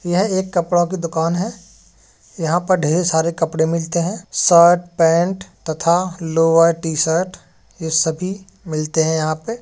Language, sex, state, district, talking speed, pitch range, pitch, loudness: Hindi, male, Uttar Pradesh, Jalaun, 150 wpm, 160-180 Hz, 170 Hz, -17 LUFS